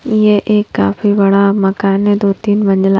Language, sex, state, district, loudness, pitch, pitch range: Hindi, female, Haryana, Rohtak, -12 LUFS, 200 Hz, 195-205 Hz